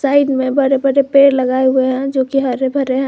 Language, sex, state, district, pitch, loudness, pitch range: Hindi, female, Jharkhand, Garhwa, 270 Hz, -14 LUFS, 260-275 Hz